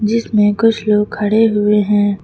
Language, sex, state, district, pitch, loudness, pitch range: Hindi, female, Uttar Pradesh, Lucknow, 210 Hz, -14 LUFS, 205-220 Hz